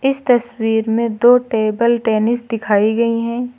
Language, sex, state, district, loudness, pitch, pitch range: Hindi, female, Uttar Pradesh, Lucknow, -16 LUFS, 235 Hz, 220-240 Hz